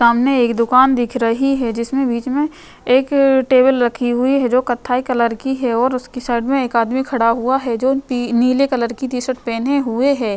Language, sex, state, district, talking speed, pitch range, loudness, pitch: Hindi, female, Uttar Pradesh, Jyotiba Phule Nagar, 215 wpm, 235-265 Hz, -16 LUFS, 250 Hz